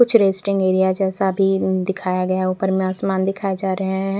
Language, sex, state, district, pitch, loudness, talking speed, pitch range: Hindi, female, Chandigarh, Chandigarh, 190 Hz, -19 LUFS, 230 wpm, 190-195 Hz